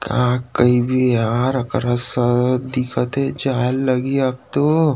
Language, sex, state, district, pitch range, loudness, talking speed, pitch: Chhattisgarhi, male, Chhattisgarh, Rajnandgaon, 125-135 Hz, -17 LUFS, 145 wpm, 125 Hz